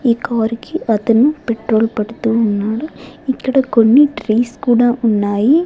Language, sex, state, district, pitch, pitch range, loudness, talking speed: Telugu, female, Andhra Pradesh, Sri Satya Sai, 235 Hz, 220-265 Hz, -15 LUFS, 115 wpm